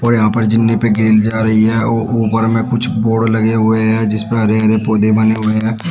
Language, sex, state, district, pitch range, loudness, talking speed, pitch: Hindi, male, Uttar Pradesh, Shamli, 110-115 Hz, -13 LUFS, 245 wpm, 110 Hz